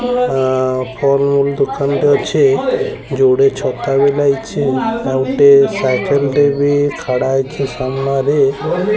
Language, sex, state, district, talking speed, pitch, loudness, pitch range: Odia, male, Odisha, Sambalpur, 115 wpm, 140 Hz, -14 LUFS, 135-145 Hz